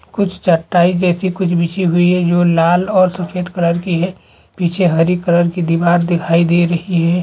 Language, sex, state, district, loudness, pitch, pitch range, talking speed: Hindi, male, Jharkhand, Jamtara, -14 LUFS, 175 Hz, 170-180 Hz, 190 wpm